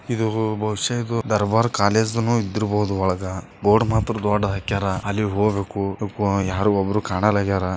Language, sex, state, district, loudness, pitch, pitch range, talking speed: Kannada, male, Karnataka, Bijapur, -21 LUFS, 105 Hz, 100-110 Hz, 140 wpm